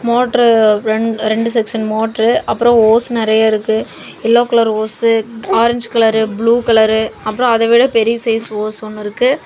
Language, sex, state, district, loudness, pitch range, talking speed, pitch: Tamil, female, Tamil Nadu, Namakkal, -13 LUFS, 220-235 Hz, 145 wpm, 225 Hz